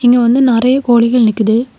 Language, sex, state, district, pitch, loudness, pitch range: Tamil, female, Tamil Nadu, Kanyakumari, 240 Hz, -11 LUFS, 230-250 Hz